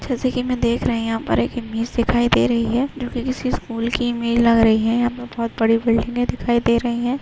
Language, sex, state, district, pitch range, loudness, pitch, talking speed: Hindi, female, Chhattisgarh, Rajnandgaon, 230-245 Hz, -20 LUFS, 235 Hz, 265 wpm